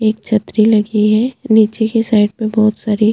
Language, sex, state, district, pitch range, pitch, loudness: Hindi, female, Chhattisgarh, Jashpur, 215-220 Hz, 215 Hz, -14 LUFS